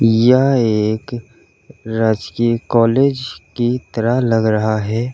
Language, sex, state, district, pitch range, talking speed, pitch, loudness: Hindi, male, Uttar Pradesh, Lalitpur, 110-125 Hz, 105 wpm, 115 Hz, -16 LUFS